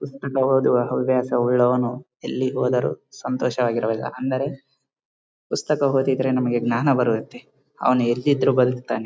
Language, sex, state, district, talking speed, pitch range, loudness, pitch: Kannada, male, Karnataka, Bellary, 120 wpm, 120-135 Hz, -21 LUFS, 125 Hz